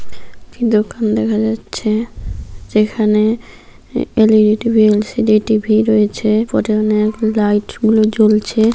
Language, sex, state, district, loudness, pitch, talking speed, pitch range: Bengali, female, West Bengal, Jhargram, -14 LUFS, 215 Hz, 80 wpm, 215-220 Hz